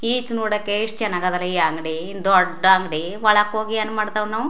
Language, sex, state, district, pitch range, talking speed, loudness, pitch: Kannada, female, Karnataka, Chamarajanagar, 180-215 Hz, 200 wpm, -20 LUFS, 210 Hz